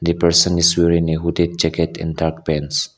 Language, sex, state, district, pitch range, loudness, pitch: English, male, Nagaland, Kohima, 80-85 Hz, -17 LUFS, 85 Hz